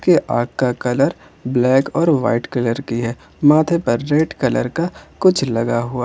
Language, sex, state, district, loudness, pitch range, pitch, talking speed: Hindi, male, Jharkhand, Ranchi, -18 LUFS, 120-155 Hz, 130 Hz, 180 wpm